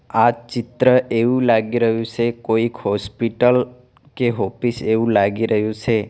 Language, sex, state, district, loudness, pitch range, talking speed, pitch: Gujarati, male, Gujarat, Valsad, -19 LUFS, 110-125 Hz, 140 wpm, 115 Hz